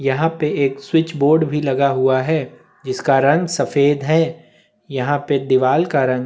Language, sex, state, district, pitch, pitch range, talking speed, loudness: Hindi, male, Chhattisgarh, Bastar, 145 Hz, 135-160 Hz, 170 wpm, -17 LUFS